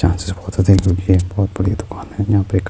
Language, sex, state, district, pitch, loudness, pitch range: Urdu, male, Bihar, Saharsa, 95 Hz, -17 LUFS, 95-100 Hz